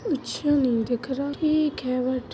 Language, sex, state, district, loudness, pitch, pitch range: Hindi, female, Bihar, Begusarai, -25 LUFS, 270 Hz, 255-300 Hz